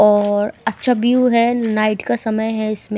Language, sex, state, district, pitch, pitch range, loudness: Hindi, female, Himachal Pradesh, Shimla, 215 Hz, 210-235 Hz, -17 LUFS